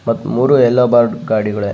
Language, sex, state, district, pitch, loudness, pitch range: Kannada, male, Karnataka, Bellary, 115 Hz, -13 LUFS, 105-120 Hz